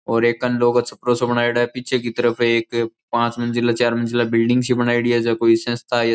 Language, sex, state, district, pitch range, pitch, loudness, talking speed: Rajasthani, male, Rajasthan, Churu, 115-120 Hz, 120 Hz, -19 LUFS, 245 wpm